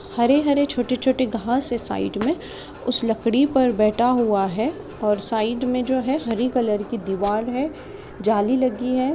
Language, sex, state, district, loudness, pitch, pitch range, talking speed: Marathi, female, Maharashtra, Pune, -21 LUFS, 245 Hz, 220-260 Hz, 165 wpm